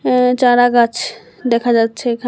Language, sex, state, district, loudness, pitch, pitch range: Bengali, female, Tripura, West Tripura, -14 LUFS, 240 Hz, 235-250 Hz